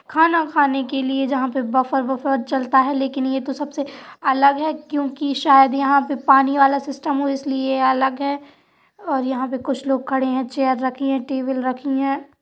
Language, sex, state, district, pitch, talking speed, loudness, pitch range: Hindi, female, Uttar Pradesh, Budaun, 275 Hz, 190 wpm, -19 LUFS, 265-280 Hz